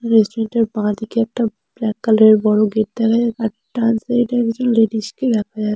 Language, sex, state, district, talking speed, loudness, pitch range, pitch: Bengali, female, West Bengal, Purulia, 210 wpm, -17 LUFS, 215-230 Hz, 225 Hz